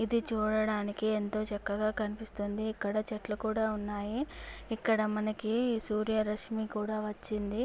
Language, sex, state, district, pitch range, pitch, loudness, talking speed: Telugu, female, Andhra Pradesh, Chittoor, 210-220 Hz, 215 Hz, -33 LUFS, 110 wpm